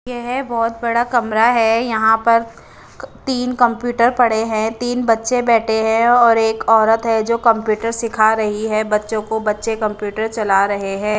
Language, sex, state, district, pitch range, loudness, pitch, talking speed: Hindi, female, Chandigarh, Chandigarh, 220-235 Hz, -16 LUFS, 225 Hz, 165 wpm